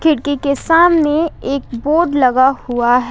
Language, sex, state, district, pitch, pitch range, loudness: Hindi, female, Jharkhand, Ranchi, 280 Hz, 255-320 Hz, -14 LUFS